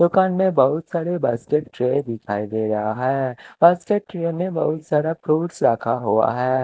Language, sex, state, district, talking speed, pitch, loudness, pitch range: Hindi, male, Punjab, Kapurthala, 170 wpm, 150 Hz, -21 LUFS, 120-170 Hz